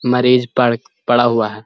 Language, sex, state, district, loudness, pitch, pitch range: Hindi, male, Bihar, Jahanabad, -15 LUFS, 120 Hz, 115-125 Hz